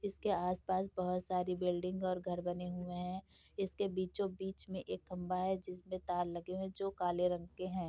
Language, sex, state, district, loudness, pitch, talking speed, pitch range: Hindi, female, Uttar Pradesh, Jyotiba Phule Nagar, -39 LUFS, 185 Hz, 205 wpm, 180-190 Hz